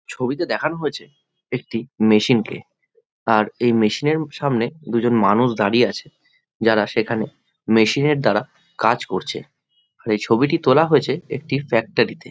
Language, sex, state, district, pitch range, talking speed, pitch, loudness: Bengali, male, West Bengal, Jhargram, 110-145 Hz, 145 wpm, 120 Hz, -19 LUFS